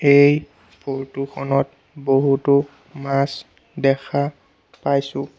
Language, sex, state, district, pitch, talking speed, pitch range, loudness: Assamese, male, Assam, Sonitpur, 140 Hz, 80 wpm, 135-140 Hz, -20 LUFS